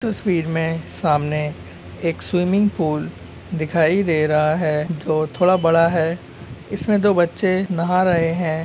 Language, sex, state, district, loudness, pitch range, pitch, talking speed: Hindi, male, West Bengal, Purulia, -19 LUFS, 150-180 Hz, 165 Hz, 140 wpm